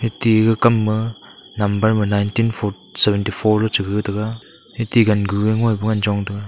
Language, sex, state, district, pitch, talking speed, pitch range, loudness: Wancho, male, Arunachal Pradesh, Longding, 105 Hz, 150 wpm, 100-110 Hz, -18 LUFS